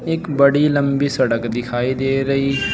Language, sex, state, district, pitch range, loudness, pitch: Hindi, male, Uttar Pradesh, Saharanpur, 130-140 Hz, -18 LUFS, 135 Hz